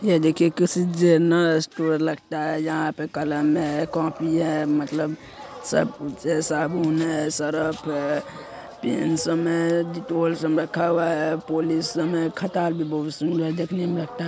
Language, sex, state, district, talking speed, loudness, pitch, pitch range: Hindi, male, Bihar, Saharsa, 155 wpm, -23 LUFS, 160 Hz, 155-170 Hz